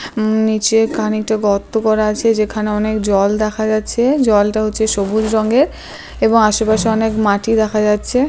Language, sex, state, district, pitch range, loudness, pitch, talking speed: Bengali, female, West Bengal, Purulia, 215-220 Hz, -15 LUFS, 215 Hz, 150 wpm